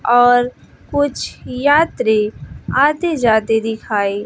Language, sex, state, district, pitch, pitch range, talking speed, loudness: Hindi, female, Bihar, West Champaran, 245 Hz, 220-285 Hz, 85 wpm, -16 LUFS